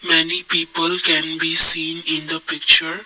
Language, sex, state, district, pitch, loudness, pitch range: English, male, Assam, Kamrup Metropolitan, 165 Hz, -15 LUFS, 160-165 Hz